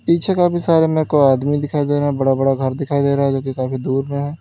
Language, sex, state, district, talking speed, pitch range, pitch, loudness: Hindi, male, Uttar Pradesh, Lalitpur, 315 wpm, 135-155 Hz, 140 Hz, -17 LUFS